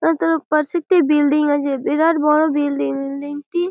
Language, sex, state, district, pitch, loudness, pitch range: Bengali, female, West Bengal, Malda, 300 Hz, -18 LUFS, 290-330 Hz